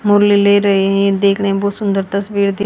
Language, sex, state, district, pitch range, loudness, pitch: Hindi, female, Haryana, Charkhi Dadri, 195-205 Hz, -14 LUFS, 200 Hz